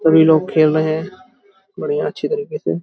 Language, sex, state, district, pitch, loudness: Hindi, male, Uttar Pradesh, Hamirpur, 190 Hz, -17 LUFS